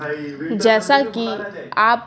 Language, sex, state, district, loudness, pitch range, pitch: Hindi, female, Bihar, Patna, -19 LUFS, 200-230 Hz, 220 Hz